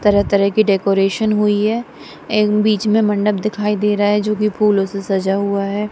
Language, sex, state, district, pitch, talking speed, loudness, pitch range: Hindi, female, Punjab, Kapurthala, 210 Hz, 215 wpm, -16 LUFS, 200-210 Hz